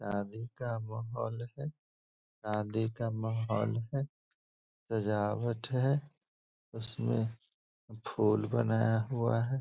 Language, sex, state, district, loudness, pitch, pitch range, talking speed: Hindi, male, Bihar, Begusarai, -34 LUFS, 115 Hz, 105-120 Hz, 95 wpm